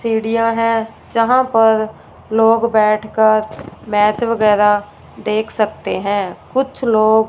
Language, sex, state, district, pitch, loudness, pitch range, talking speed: Hindi, female, Punjab, Fazilka, 220 Hz, -15 LUFS, 215-230 Hz, 105 wpm